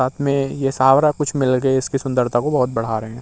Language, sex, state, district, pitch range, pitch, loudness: Hindi, male, Uttar Pradesh, Muzaffarnagar, 125-140 Hz, 130 Hz, -18 LUFS